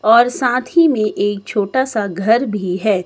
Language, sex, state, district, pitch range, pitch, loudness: Hindi, female, Himachal Pradesh, Shimla, 205-250 Hz, 215 Hz, -16 LUFS